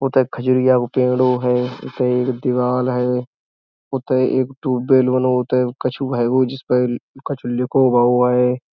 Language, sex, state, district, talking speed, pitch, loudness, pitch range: Hindi, male, Uttar Pradesh, Budaun, 145 wpm, 125 Hz, -18 LUFS, 125-130 Hz